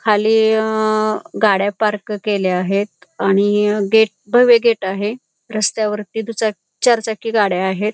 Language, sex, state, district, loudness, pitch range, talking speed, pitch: Marathi, female, Maharashtra, Pune, -17 LUFS, 200-220 Hz, 130 wpm, 215 Hz